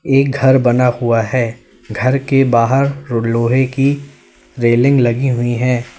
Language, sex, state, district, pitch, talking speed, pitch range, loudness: Hindi, male, Uttar Pradesh, Lalitpur, 125 Hz, 140 wpm, 120-135 Hz, -14 LUFS